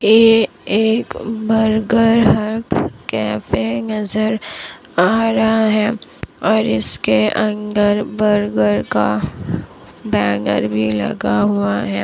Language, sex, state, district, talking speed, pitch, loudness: Hindi, female, Bihar, Kishanganj, 95 wpm, 210 Hz, -16 LUFS